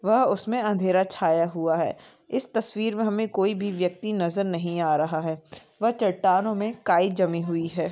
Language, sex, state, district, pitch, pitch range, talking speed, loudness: Hindi, female, Maharashtra, Aurangabad, 185 Hz, 170-215 Hz, 190 wpm, -25 LUFS